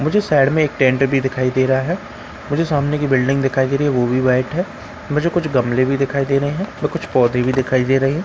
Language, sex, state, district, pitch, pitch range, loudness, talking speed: Hindi, male, Bihar, Katihar, 135 Hz, 130-150 Hz, -17 LUFS, 285 wpm